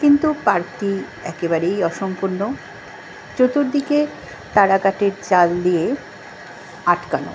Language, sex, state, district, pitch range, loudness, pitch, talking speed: Bengali, female, West Bengal, Jhargram, 180-275 Hz, -19 LUFS, 195 Hz, 100 wpm